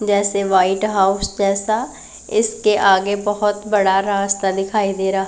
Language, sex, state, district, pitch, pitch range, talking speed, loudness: Hindi, female, Punjab, Pathankot, 200 Hz, 195-210 Hz, 135 wpm, -17 LUFS